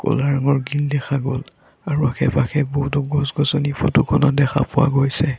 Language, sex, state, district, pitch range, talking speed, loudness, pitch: Assamese, male, Assam, Sonitpur, 135-145 Hz, 120 wpm, -19 LUFS, 145 Hz